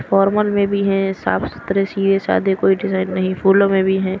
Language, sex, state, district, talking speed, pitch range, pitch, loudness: Hindi, female, Haryana, Rohtak, 215 wpm, 190-195 Hz, 195 Hz, -17 LUFS